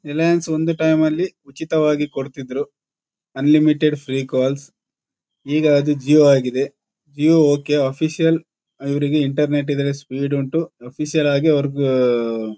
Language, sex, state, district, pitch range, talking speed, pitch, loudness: Kannada, male, Karnataka, Shimoga, 140-155 Hz, 125 wpm, 145 Hz, -18 LUFS